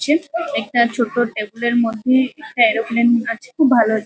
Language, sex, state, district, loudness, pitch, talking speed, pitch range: Bengali, female, West Bengal, Kolkata, -17 LUFS, 235 Hz, 180 wpm, 230-255 Hz